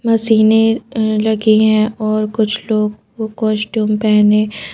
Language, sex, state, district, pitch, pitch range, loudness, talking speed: Hindi, female, Madhya Pradesh, Bhopal, 215 Hz, 215-220 Hz, -14 LUFS, 125 wpm